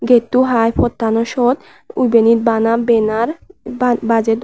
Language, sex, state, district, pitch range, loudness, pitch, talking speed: Chakma, male, Tripura, Unakoti, 230-250 Hz, -15 LUFS, 235 Hz, 135 wpm